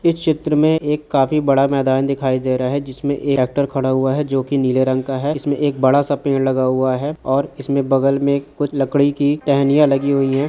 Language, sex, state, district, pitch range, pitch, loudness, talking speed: Hindi, male, Andhra Pradesh, Srikakulam, 135-145 Hz, 140 Hz, -17 LUFS, 65 wpm